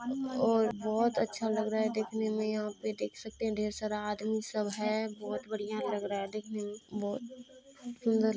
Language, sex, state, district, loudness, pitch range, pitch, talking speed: Hindi, female, Bihar, Purnia, -34 LUFS, 210-225 Hz, 220 Hz, 195 wpm